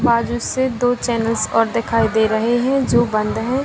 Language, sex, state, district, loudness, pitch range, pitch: Hindi, female, Bihar, Kishanganj, -18 LUFS, 225-245 Hz, 235 Hz